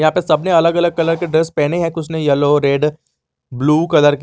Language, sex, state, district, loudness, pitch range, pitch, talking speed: Hindi, male, Jharkhand, Garhwa, -15 LUFS, 145-165 Hz, 160 Hz, 255 wpm